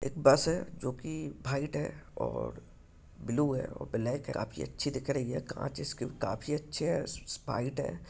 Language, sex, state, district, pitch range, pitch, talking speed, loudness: Hindi, male, Maharashtra, Pune, 125-150 Hz, 140 Hz, 200 wpm, -34 LUFS